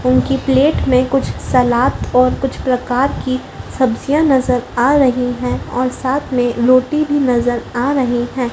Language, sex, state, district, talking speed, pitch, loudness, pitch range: Hindi, female, Madhya Pradesh, Dhar, 160 wpm, 255 Hz, -15 LUFS, 245-270 Hz